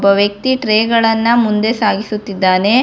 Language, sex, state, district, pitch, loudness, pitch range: Kannada, female, Karnataka, Bangalore, 215 Hz, -14 LUFS, 200-230 Hz